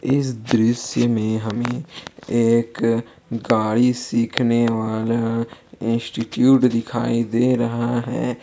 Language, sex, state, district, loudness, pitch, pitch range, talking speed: Hindi, male, Jharkhand, Palamu, -20 LUFS, 115 Hz, 115-120 Hz, 90 wpm